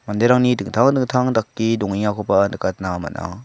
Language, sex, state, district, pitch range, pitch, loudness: Garo, male, Meghalaya, South Garo Hills, 100-125 Hz, 105 Hz, -19 LUFS